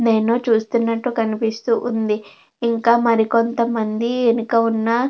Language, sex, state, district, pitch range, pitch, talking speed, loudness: Telugu, female, Andhra Pradesh, Anantapur, 225-235 Hz, 230 Hz, 95 wpm, -19 LUFS